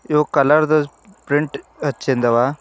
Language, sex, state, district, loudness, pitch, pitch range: Kannada, male, Karnataka, Bidar, -18 LUFS, 145 Hz, 135-155 Hz